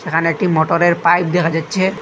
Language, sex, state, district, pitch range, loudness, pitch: Bengali, male, Assam, Hailakandi, 165-180 Hz, -15 LUFS, 170 Hz